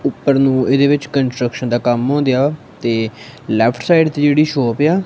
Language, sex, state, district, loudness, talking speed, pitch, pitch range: Punjabi, male, Punjab, Kapurthala, -15 LUFS, 200 wpm, 135 Hz, 120-145 Hz